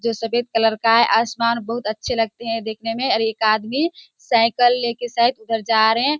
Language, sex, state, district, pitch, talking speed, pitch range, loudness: Hindi, female, Bihar, Kishanganj, 230 Hz, 215 wpm, 225-240 Hz, -19 LUFS